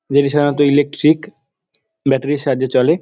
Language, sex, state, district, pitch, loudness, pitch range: Bengali, male, West Bengal, Dakshin Dinajpur, 145 Hz, -16 LUFS, 135-145 Hz